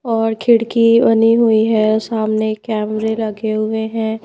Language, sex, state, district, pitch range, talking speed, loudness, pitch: Hindi, female, Madhya Pradesh, Bhopal, 220-225 Hz, 140 wpm, -15 LUFS, 220 Hz